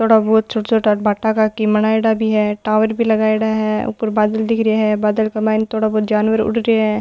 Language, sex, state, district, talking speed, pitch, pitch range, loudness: Marwari, female, Rajasthan, Nagaur, 240 wpm, 220 Hz, 215-220 Hz, -16 LUFS